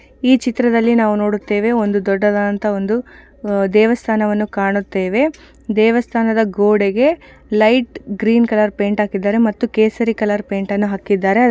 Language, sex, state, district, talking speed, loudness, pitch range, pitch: Kannada, female, Karnataka, Shimoga, 115 wpm, -16 LUFS, 205-235 Hz, 215 Hz